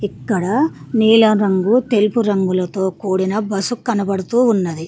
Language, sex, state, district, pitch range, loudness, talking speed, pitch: Telugu, female, Telangana, Mahabubabad, 190-225 Hz, -16 LUFS, 110 wpm, 205 Hz